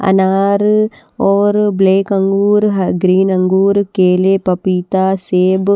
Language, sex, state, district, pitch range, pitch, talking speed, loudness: Hindi, female, Bihar, West Champaran, 190-200 Hz, 195 Hz, 115 wpm, -13 LUFS